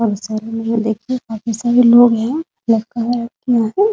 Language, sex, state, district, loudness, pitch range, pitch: Hindi, female, Bihar, Muzaffarpur, -16 LUFS, 225-245 Hz, 230 Hz